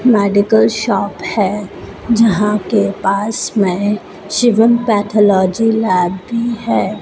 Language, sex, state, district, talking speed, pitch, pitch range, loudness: Hindi, female, Madhya Pradesh, Dhar, 105 wpm, 210 Hz, 200-225 Hz, -14 LUFS